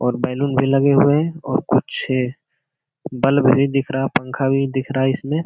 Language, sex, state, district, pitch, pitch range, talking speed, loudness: Hindi, male, Bihar, Jamui, 135 Hz, 130-140 Hz, 210 wpm, -18 LUFS